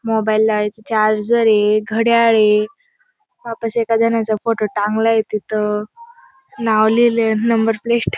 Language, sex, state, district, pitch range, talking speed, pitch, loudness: Marathi, female, Maharashtra, Dhule, 215-235 Hz, 140 wpm, 225 Hz, -16 LUFS